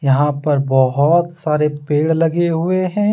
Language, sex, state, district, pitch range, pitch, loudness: Hindi, male, Jharkhand, Deoghar, 145-170 Hz, 150 Hz, -16 LUFS